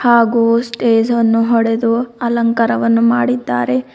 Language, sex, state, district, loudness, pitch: Kannada, female, Karnataka, Bidar, -14 LUFS, 230 Hz